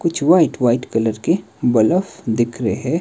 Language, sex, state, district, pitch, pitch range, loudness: Hindi, male, Himachal Pradesh, Shimla, 120 Hz, 115-165 Hz, -17 LUFS